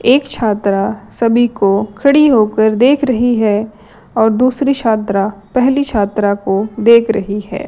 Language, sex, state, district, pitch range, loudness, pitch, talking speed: Hindi, female, Chhattisgarh, Raipur, 205-250 Hz, -13 LUFS, 220 Hz, 140 wpm